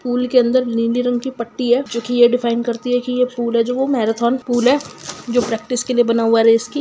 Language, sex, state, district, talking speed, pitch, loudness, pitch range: Hindi, female, Bihar, Sitamarhi, 245 wpm, 245 Hz, -17 LUFS, 235-250 Hz